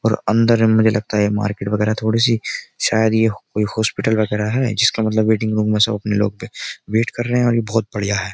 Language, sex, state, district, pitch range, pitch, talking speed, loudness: Hindi, male, Uttar Pradesh, Jyotiba Phule Nagar, 105-115 Hz, 110 Hz, 245 wpm, -18 LUFS